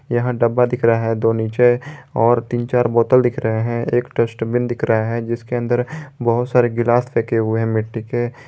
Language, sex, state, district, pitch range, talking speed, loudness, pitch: Hindi, male, Jharkhand, Garhwa, 115-125 Hz, 205 wpm, -18 LUFS, 120 Hz